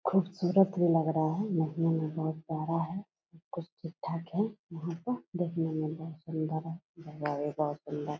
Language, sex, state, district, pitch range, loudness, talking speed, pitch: Hindi, female, Bihar, Purnia, 155-175 Hz, -33 LUFS, 190 wpm, 165 Hz